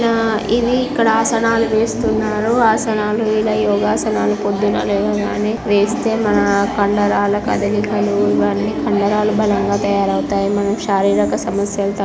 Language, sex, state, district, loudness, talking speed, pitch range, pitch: Telugu, female, Andhra Pradesh, Guntur, -16 LUFS, 110 wpm, 200-220 Hz, 210 Hz